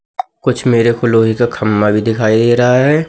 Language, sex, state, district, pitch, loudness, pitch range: Hindi, male, Madhya Pradesh, Katni, 120 Hz, -12 LUFS, 110-125 Hz